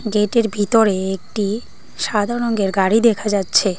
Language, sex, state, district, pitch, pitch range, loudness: Bengali, female, Tripura, Dhalai, 210 Hz, 195-225 Hz, -18 LUFS